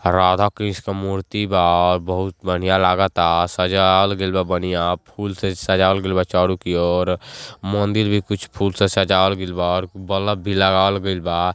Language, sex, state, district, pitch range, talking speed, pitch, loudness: Bhojpuri, male, Uttar Pradesh, Gorakhpur, 90-100 Hz, 155 wpm, 95 Hz, -19 LUFS